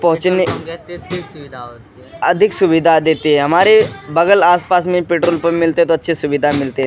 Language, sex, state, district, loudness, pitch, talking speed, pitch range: Hindi, male, Bihar, Kishanganj, -13 LUFS, 165 Hz, 150 wpm, 145-175 Hz